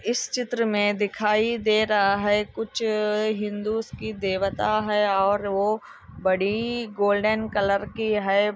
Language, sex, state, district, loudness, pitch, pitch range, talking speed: Hindi, female, Andhra Pradesh, Anantapur, -24 LUFS, 210 Hz, 205-220 Hz, 140 wpm